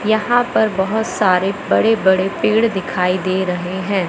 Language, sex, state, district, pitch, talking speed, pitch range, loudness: Hindi, female, Madhya Pradesh, Katni, 195 Hz, 160 wpm, 185-220 Hz, -17 LUFS